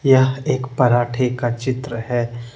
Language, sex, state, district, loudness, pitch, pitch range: Hindi, male, Jharkhand, Deoghar, -19 LUFS, 125 Hz, 120-130 Hz